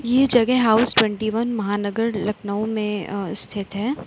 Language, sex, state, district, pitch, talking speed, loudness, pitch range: Hindi, female, Uttar Pradesh, Lucknow, 215 Hz, 160 wpm, -21 LUFS, 205-235 Hz